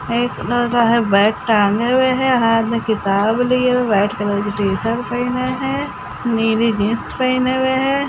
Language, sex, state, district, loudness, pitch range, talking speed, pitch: Hindi, female, Chhattisgarh, Sukma, -17 LUFS, 215-255 Hz, 180 wpm, 235 Hz